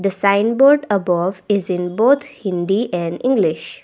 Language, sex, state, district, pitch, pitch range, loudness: English, female, Assam, Kamrup Metropolitan, 200 Hz, 180-240 Hz, -17 LUFS